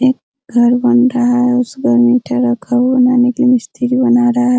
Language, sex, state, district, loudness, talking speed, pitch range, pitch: Hindi, female, Bihar, Araria, -12 LUFS, 235 wpm, 245-255 Hz, 245 Hz